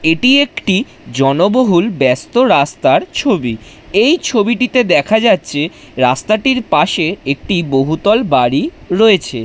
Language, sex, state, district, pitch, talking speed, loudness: Bengali, male, West Bengal, Dakshin Dinajpur, 185 Hz, 100 wpm, -13 LUFS